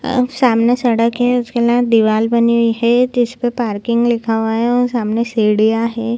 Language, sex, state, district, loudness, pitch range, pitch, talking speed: Hindi, female, Chhattisgarh, Bilaspur, -15 LUFS, 230-245 Hz, 235 Hz, 165 wpm